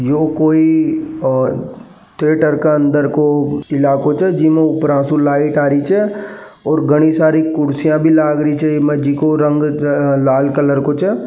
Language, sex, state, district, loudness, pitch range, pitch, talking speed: Marwari, male, Rajasthan, Nagaur, -14 LUFS, 145-155 Hz, 150 Hz, 170 wpm